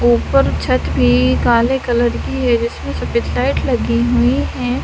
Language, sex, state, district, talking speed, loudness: Hindi, female, Haryana, Charkhi Dadri, 160 wpm, -16 LUFS